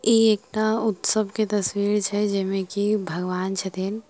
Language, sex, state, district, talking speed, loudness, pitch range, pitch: Maithili, female, Bihar, Samastipur, 145 wpm, -23 LUFS, 195-215 Hz, 205 Hz